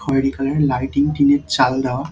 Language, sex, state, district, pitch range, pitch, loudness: Bengali, male, West Bengal, Dakshin Dinajpur, 135-145 Hz, 135 Hz, -18 LUFS